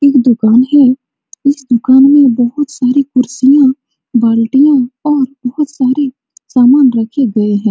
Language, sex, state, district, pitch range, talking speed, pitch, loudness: Hindi, female, Bihar, Supaul, 245-280 Hz, 140 wpm, 260 Hz, -10 LUFS